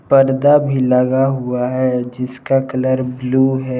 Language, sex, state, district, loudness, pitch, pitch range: Hindi, male, Jharkhand, Palamu, -16 LUFS, 130 Hz, 125-135 Hz